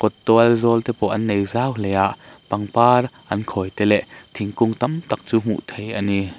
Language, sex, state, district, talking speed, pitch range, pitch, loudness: Mizo, male, Mizoram, Aizawl, 205 wpm, 100-115 Hz, 110 Hz, -20 LUFS